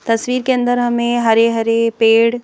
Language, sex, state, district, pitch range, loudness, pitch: Hindi, female, Madhya Pradesh, Bhopal, 230-245 Hz, -15 LUFS, 230 Hz